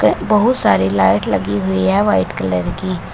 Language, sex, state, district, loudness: Hindi, female, Uttar Pradesh, Shamli, -15 LUFS